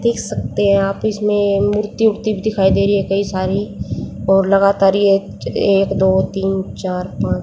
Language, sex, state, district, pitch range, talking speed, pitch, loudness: Hindi, female, Haryana, Jhajjar, 195-205 Hz, 170 wpm, 195 Hz, -16 LUFS